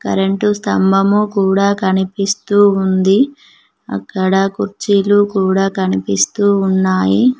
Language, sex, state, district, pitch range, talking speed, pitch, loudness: Telugu, female, Telangana, Mahabubabad, 190-205 Hz, 80 wpm, 195 Hz, -14 LUFS